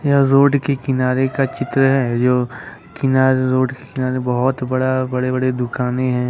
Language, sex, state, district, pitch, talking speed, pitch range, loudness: Hindi, male, Jharkhand, Ranchi, 130 Hz, 160 wpm, 125-135 Hz, -17 LUFS